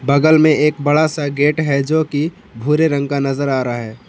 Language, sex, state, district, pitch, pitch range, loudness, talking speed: Hindi, male, Jharkhand, Palamu, 145 Hz, 140-155 Hz, -16 LUFS, 235 wpm